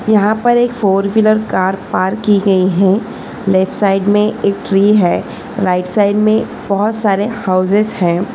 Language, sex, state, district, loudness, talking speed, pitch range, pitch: Hindi, female, Maharashtra, Solapur, -13 LUFS, 150 wpm, 190-215 Hz, 200 Hz